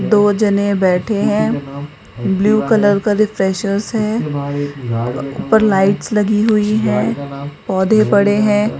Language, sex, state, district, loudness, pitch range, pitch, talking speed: Hindi, female, Rajasthan, Jaipur, -15 LUFS, 165-215 Hz, 205 Hz, 115 wpm